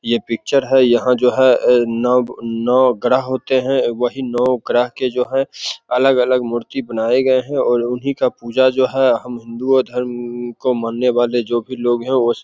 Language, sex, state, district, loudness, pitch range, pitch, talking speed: Hindi, male, Bihar, Begusarai, -17 LUFS, 120-130 Hz, 125 Hz, 190 wpm